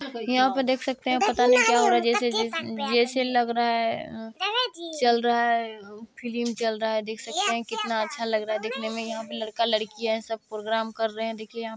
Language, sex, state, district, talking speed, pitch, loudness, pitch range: Hindi, female, Bihar, Kishanganj, 245 wpm, 230 Hz, -25 LUFS, 220-240 Hz